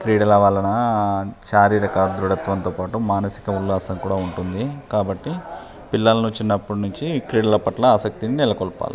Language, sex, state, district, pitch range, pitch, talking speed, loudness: Telugu, male, Telangana, Nalgonda, 95-110 Hz, 100 Hz, 120 wpm, -20 LUFS